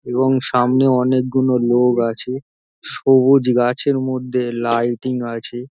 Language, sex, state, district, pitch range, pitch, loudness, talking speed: Bengali, male, West Bengal, Dakshin Dinajpur, 120-130 Hz, 125 Hz, -17 LUFS, 125 wpm